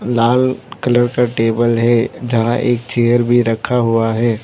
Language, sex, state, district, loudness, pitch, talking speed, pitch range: Hindi, male, Arunachal Pradesh, Lower Dibang Valley, -15 LUFS, 120 Hz, 160 wpm, 115-125 Hz